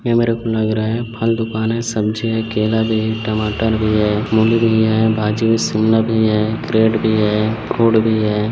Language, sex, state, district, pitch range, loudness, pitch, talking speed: Hindi, male, Chhattisgarh, Bilaspur, 110-115 Hz, -16 LUFS, 110 Hz, 190 wpm